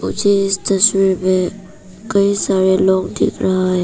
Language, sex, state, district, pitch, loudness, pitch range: Hindi, female, Arunachal Pradesh, Papum Pare, 190 Hz, -15 LUFS, 185-200 Hz